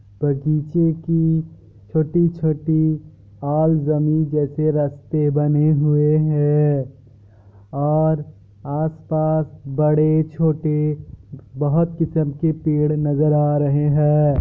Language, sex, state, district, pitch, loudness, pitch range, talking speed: Hindi, male, Bihar, Kishanganj, 150 Hz, -19 LUFS, 145-155 Hz, 90 wpm